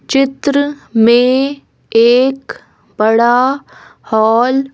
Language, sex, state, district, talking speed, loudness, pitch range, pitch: Hindi, female, Madhya Pradesh, Bhopal, 75 wpm, -12 LUFS, 235-275 Hz, 260 Hz